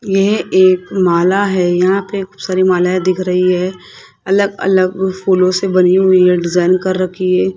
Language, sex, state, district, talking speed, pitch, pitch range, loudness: Hindi, male, Rajasthan, Jaipur, 180 wpm, 185 Hz, 180-190 Hz, -13 LUFS